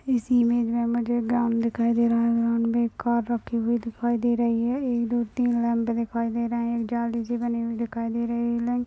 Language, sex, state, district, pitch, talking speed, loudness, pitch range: Hindi, male, Maharashtra, Nagpur, 235 Hz, 225 wpm, -25 LUFS, 235-240 Hz